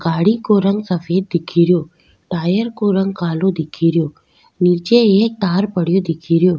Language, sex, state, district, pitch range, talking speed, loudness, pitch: Rajasthani, female, Rajasthan, Nagaur, 170-195 Hz, 135 wpm, -16 LUFS, 180 Hz